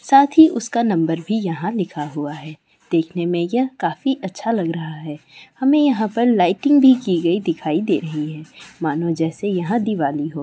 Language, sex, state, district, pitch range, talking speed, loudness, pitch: Hindi, female, West Bengal, North 24 Parganas, 160-235 Hz, 185 wpm, -19 LUFS, 175 Hz